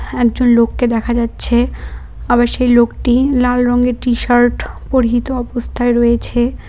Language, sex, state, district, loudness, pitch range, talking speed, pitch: Bengali, female, West Bengal, Cooch Behar, -14 LUFS, 240-250 Hz, 115 wpm, 240 Hz